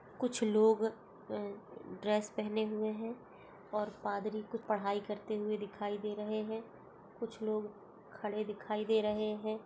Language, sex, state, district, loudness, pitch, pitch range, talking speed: Hindi, female, Chhattisgarh, Jashpur, -37 LUFS, 215 Hz, 210-220 Hz, 150 wpm